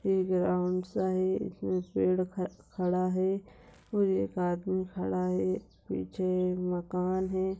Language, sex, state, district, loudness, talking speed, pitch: Hindi, female, Bihar, Begusarai, -31 LUFS, 125 wpm, 180 Hz